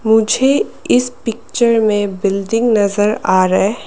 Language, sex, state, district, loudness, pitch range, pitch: Hindi, female, Arunachal Pradesh, Lower Dibang Valley, -14 LUFS, 200-235 Hz, 220 Hz